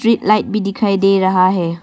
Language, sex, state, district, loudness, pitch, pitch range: Hindi, female, Arunachal Pradesh, Longding, -14 LUFS, 195 Hz, 185-215 Hz